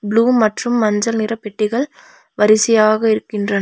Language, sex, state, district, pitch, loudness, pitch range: Tamil, female, Tamil Nadu, Nilgiris, 220 Hz, -16 LUFS, 210-235 Hz